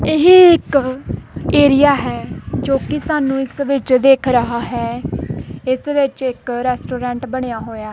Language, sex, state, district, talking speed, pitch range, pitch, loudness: Punjabi, female, Punjab, Kapurthala, 135 wpm, 245-280 Hz, 260 Hz, -15 LUFS